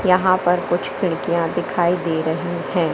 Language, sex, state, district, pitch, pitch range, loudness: Hindi, male, Madhya Pradesh, Katni, 175 Hz, 170-180 Hz, -20 LUFS